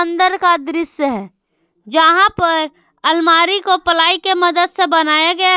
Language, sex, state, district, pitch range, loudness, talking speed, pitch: Hindi, female, Jharkhand, Garhwa, 315-360 Hz, -12 LUFS, 160 wpm, 335 Hz